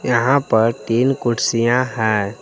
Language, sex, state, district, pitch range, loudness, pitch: Hindi, male, Jharkhand, Palamu, 110-125 Hz, -17 LUFS, 115 Hz